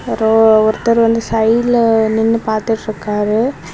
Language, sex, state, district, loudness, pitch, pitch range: Tamil, female, Tamil Nadu, Kanyakumari, -14 LUFS, 220 Hz, 220-230 Hz